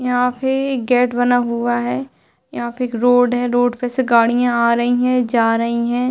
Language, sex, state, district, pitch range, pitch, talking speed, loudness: Hindi, female, Uttar Pradesh, Hamirpur, 240-250 Hz, 245 Hz, 215 wpm, -17 LUFS